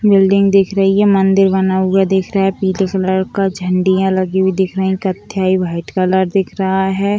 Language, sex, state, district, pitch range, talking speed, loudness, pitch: Hindi, female, Bihar, Sitamarhi, 190-195 Hz, 190 wpm, -14 LUFS, 190 Hz